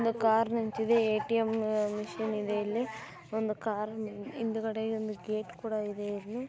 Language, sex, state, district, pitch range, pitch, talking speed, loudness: Kannada, female, Karnataka, Belgaum, 210-225 Hz, 220 Hz, 140 wpm, -32 LUFS